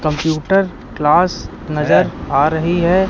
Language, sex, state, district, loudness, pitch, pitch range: Hindi, male, Madhya Pradesh, Katni, -16 LUFS, 160 Hz, 155-180 Hz